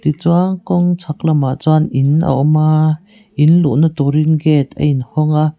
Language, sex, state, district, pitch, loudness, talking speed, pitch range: Mizo, female, Mizoram, Aizawl, 155 Hz, -14 LUFS, 180 wpm, 150-165 Hz